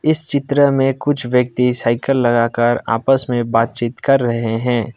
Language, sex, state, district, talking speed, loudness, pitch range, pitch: Hindi, male, Assam, Kamrup Metropolitan, 155 wpm, -16 LUFS, 120-135 Hz, 125 Hz